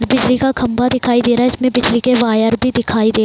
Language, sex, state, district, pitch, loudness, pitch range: Hindi, female, Bihar, Saran, 245 Hz, -14 LUFS, 235-255 Hz